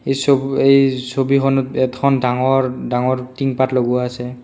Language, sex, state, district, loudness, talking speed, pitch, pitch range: Assamese, male, Assam, Kamrup Metropolitan, -17 LUFS, 135 wpm, 130 Hz, 125-135 Hz